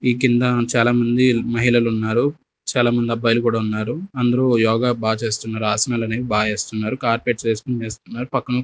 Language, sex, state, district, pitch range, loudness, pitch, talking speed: Telugu, male, Andhra Pradesh, Sri Satya Sai, 110-125 Hz, -19 LUFS, 120 Hz, 145 wpm